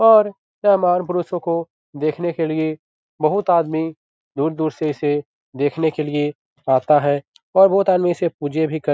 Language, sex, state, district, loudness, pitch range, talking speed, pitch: Hindi, male, Bihar, Darbhanga, -19 LUFS, 150-180 Hz, 175 wpm, 160 Hz